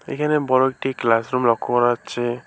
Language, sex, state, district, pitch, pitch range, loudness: Bengali, male, West Bengal, Alipurduar, 125 Hz, 120-135 Hz, -20 LUFS